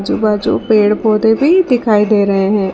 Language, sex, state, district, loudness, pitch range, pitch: Hindi, female, Karnataka, Bangalore, -12 LUFS, 205-225 Hz, 215 Hz